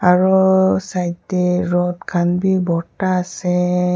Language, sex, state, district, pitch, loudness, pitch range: Nagamese, female, Nagaland, Kohima, 180 Hz, -17 LUFS, 180-190 Hz